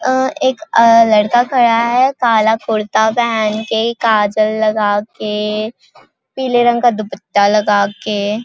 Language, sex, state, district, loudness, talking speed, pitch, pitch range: Hindi, female, Chhattisgarh, Balrampur, -14 LUFS, 135 wpm, 220 Hz, 210-240 Hz